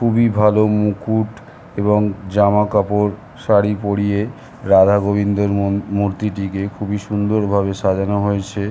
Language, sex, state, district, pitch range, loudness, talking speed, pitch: Bengali, male, West Bengal, North 24 Parganas, 100-105 Hz, -17 LUFS, 125 wpm, 100 Hz